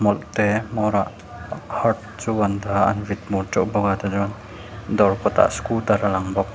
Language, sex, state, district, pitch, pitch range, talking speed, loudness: Mizo, male, Mizoram, Aizawl, 100 Hz, 100-105 Hz, 190 wpm, -21 LUFS